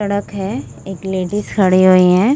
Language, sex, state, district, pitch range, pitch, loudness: Hindi, female, Uttar Pradesh, Muzaffarnagar, 185-205 Hz, 190 Hz, -15 LUFS